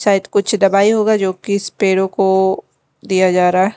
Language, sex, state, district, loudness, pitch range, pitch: Hindi, female, Delhi, New Delhi, -15 LUFS, 190-205 Hz, 195 Hz